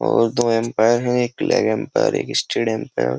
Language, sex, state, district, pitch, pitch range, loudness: Hindi, male, Uttar Pradesh, Jyotiba Phule Nagar, 115 Hz, 115-120 Hz, -19 LUFS